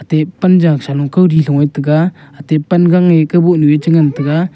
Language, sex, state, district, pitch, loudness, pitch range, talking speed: Wancho, male, Arunachal Pradesh, Longding, 155 Hz, -11 LUFS, 150-175 Hz, 170 wpm